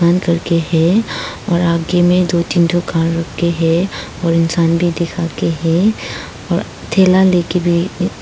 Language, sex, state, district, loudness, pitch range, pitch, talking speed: Hindi, female, Arunachal Pradesh, Papum Pare, -15 LUFS, 165-175 Hz, 170 Hz, 155 wpm